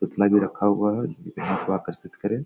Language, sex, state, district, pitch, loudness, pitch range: Hindi, male, Bihar, Darbhanga, 105 Hz, -24 LUFS, 100-105 Hz